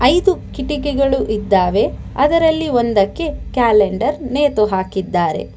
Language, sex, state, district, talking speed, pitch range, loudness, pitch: Kannada, female, Karnataka, Bangalore, 85 wpm, 205-290 Hz, -16 LUFS, 250 Hz